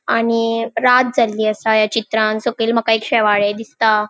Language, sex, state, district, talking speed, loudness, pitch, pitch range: Konkani, female, Goa, North and South Goa, 160 wpm, -16 LUFS, 225 Hz, 215-230 Hz